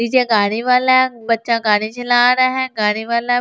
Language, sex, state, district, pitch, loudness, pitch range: Hindi, female, Delhi, New Delhi, 240 Hz, -15 LUFS, 220-250 Hz